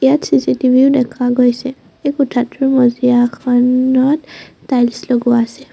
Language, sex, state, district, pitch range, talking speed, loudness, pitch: Assamese, female, Assam, Sonitpur, 245-270 Hz, 115 wpm, -14 LUFS, 255 Hz